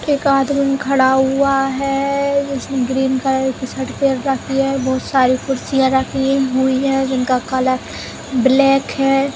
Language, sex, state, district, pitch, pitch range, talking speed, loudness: Hindi, female, Uttar Pradesh, Jalaun, 270 Hz, 260-275 Hz, 145 wpm, -16 LUFS